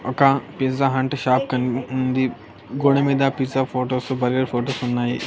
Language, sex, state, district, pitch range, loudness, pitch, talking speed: Telugu, male, Andhra Pradesh, Annamaya, 125-135 Hz, -21 LUFS, 130 Hz, 150 wpm